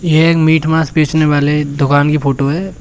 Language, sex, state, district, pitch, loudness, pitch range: Hindi, male, Uttar Pradesh, Shamli, 155 Hz, -12 LUFS, 145-160 Hz